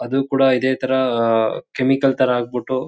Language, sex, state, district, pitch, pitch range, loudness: Kannada, male, Karnataka, Shimoga, 130 Hz, 125-135 Hz, -18 LUFS